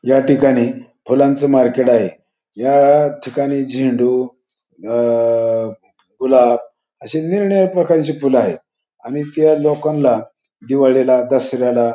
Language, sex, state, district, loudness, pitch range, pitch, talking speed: Marathi, male, Maharashtra, Pune, -15 LUFS, 125-145 Hz, 130 Hz, 105 wpm